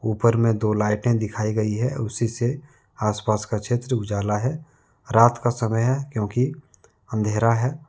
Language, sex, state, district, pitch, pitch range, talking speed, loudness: Hindi, male, Jharkhand, Deoghar, 115 Hz, 105-125 Hz, 160 wpm, -23 LUFS